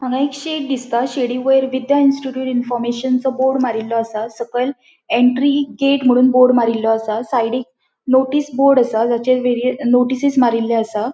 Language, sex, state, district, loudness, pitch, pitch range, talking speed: Konkani, female, Goa, North and South Goa, -16 LUFS, 255 Hz, 240-270 Hz, 150 wpm